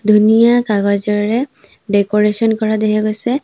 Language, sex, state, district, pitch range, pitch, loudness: Assamese, female, Assam, Sonitpur, 210-225 Hz, 215 Hz, -14 LUFS